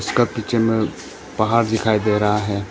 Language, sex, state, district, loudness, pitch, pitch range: Hindi, male, Arunachal Pradesh, Papum Pare, -19 LUFS, 110 Hz, 105-115 Hz